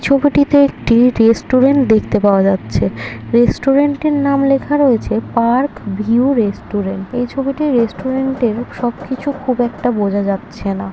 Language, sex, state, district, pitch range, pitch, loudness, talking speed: Bengali, female, West Bengal, Jhargram, 205-275 Hz, 240 Hz, -15 LUFS, 120 wpm